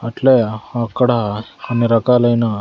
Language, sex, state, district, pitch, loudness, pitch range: Telugu, male, Andhra Pradesh, Sri Satya Sai, 120 Hz, -16 LUFS, 115-125 Hz